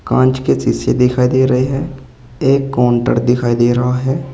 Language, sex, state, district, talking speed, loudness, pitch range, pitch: Hindi, male, Uttar Pradesh, Saharanpur, 180 wpm, -14 LUFS, 125-135 Hz, 125 Hz